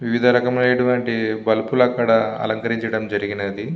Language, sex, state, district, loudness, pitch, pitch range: Telugu, male, Andhra Pradesh, Visakhapatnam, -19 LUFS, 115 Hz, 110-125 Hz